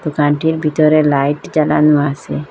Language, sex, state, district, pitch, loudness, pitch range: Bengali, female, Assam, Hailakandi, 150 Hz, -14 LUFS, 145-155 Hz